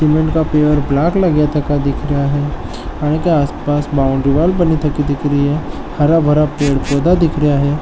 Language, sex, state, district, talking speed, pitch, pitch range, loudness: Marwari, male, Rajasthan, Nagaur, 185 wpm, 150 Hz, 145-155 Hz, -15 LUFS